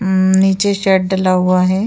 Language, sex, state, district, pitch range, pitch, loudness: Hindi, female, Uttar Pradesh, Jyotiba Phule Nagar, 185-195 Hz, 190 Hz, -13 LUFS